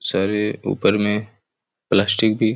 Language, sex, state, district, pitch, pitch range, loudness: Hindi, male, Chhattisgarh, Raigarh, 105 Hz, 100-110 Hz, -19 LUFS